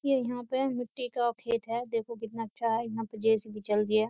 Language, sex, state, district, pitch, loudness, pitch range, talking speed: Hindi, female, Uttar Pradesh, Jyotiba Phule Nagar, 230 Hz, -31 LUFS, 225-245 Hz, 250 wpm